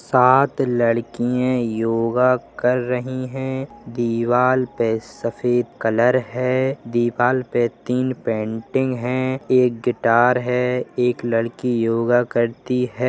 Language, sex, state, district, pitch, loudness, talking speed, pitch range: Hindi, male, Uttar Pradesh, Jalaun, 125 Hz, -20 LUFS, 110 wpm, 115-125 Hz